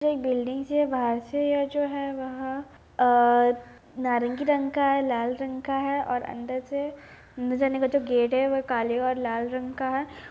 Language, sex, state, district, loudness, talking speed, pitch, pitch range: Hindi, female, Bihar, Bhagalpur, -26 LUFS, 205 wpm, 265 Hz, 245-275 Hz